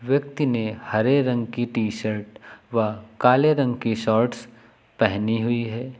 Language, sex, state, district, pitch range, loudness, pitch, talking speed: Hindi, male, Uttar Pradesh, Lucknow, 110-125 Hz, -23 LUFS, 115 Hz, 150 wpm